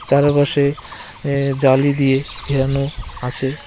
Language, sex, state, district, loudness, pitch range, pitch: Bengali, male, West Bengal, Cooch Behar, -18 LUFS, 135-140 Hz, 140 Hz